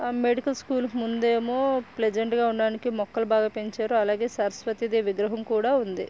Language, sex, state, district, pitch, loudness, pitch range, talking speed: Telugu, female, Andhra Pradesh, Srikakulam, 230 Hz, -26 LUFS, 220-240 Hz, 140 wpm